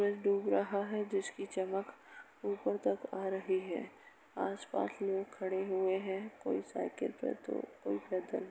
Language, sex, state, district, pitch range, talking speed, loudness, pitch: Hindi, female, Uttar Pradesh, Jalaun, 185-200 Hz, 150 wpm, -37 LUFS, 190 Hz